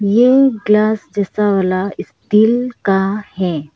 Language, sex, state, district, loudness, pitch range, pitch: Hindi, female, Arunachal Pradesh, Lower Dibang Valley, -15 LUFS, 195-220 Hz, 205 Hz